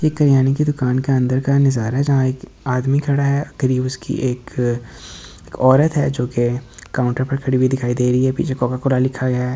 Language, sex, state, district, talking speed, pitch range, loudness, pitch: Hindi, male, Delhi, New Delhi, 220 wpm, 125-140 Hz, -18 LUFS, 130 Hz